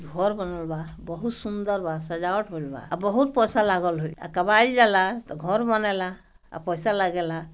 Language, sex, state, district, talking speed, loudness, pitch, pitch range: Bhojpuri, female, Bihar, Gopalganj, 165 wpm, -24 LUFS, 185 Hz, 170-215 Hz